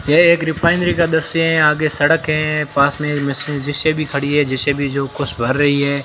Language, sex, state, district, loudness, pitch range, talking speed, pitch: Hindi, male, Rajasthan, Barmer, -16 LUFS, 140-160 Hz, 210 wpm, 150 Hz